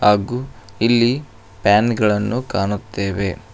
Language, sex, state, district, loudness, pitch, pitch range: Kannada, male, Karnataka, Koppal, -19 LUFS, 110 Hz, 100-120 Hz